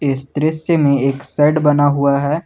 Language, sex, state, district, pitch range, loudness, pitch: Hindi, male, Jharkhand, Garhwa, 140-150 Hz, -15 LUFS, 145 Hz